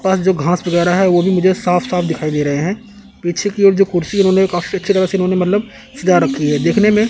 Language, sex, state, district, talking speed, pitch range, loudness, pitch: Hindi, male, Chandigarh, Chandigarh, 260 wpm, 175-195 Hz, -15 LUFS, 185 Hz